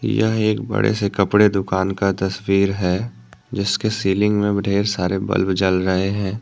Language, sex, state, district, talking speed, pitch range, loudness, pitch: Hindi, male, Jharkhand, Deoghar, 170 wpm, 95-105 Hz, -19 LUFS, 100 Hz